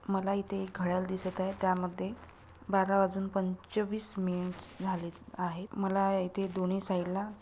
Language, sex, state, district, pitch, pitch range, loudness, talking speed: Marathi, female, Maharashtra, Chandrapur, 190 Hz, 185-195 Hz, -33 LUFS, 145 wpm